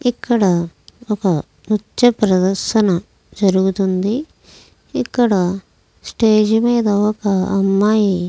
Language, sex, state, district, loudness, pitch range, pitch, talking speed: Telugu, female, Andhra Pradesh, Krishna, -16 LUFS, 190-220 Hz, 205 Hz, 80 wpm